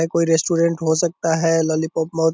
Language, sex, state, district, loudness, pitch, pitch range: Hindi, male, Bihar, Purnia, -19 LUFS, 165 Hz, 160-165 Hz